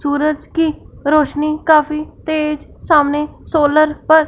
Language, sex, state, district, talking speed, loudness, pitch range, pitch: Hindi, female, Punjab, Fazilka, 110 wpm, -16 LUFS, 300-310 Hz, 305 Hz